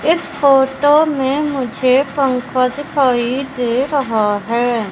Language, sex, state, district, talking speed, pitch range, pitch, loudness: Hindi, female, Madhya Pradesh, Katni, 110 wpm, 245-285 Hz, 265 Hz, -15 LUFS